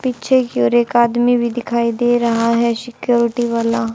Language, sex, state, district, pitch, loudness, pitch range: Hindi, male, Haryana, Charkhi Dadri, 235 Hz, -16 LUFS, 235-240 Hz